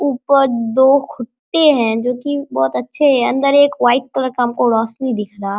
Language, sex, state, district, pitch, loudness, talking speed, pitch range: Hindi, male, Bihar, Araria, 255 Hz, -15 LUFS, 195 wpm, 230-280 Hz